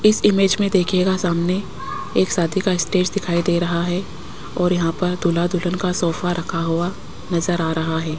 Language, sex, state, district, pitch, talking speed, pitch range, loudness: Hindi, female, Rajasthan, Jaipur, 180 Hz, 190 wpm, 170-185 Hz, -20 LUFS